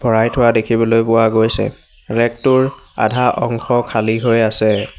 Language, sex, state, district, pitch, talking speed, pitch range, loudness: Assamese, male, Assam, Hailakandi, 115 Hz, 130 wpm, 110-120 Hz, -15 LUFS